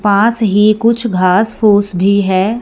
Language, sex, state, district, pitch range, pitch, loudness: Hindi, female, Punjab, Fazilka, 200-225 Hz, 210 Hz, -12 LUFS